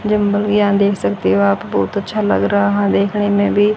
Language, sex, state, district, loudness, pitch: Hindi, female, Haryana, Rohtak, -15 LUFS, 200 Hz